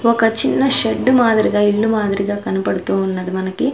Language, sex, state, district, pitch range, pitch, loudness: Telugu, female, Andhra Pradesh, Sri Satya Sai, 195-235 Hz, 210 Hz, -16 LUFS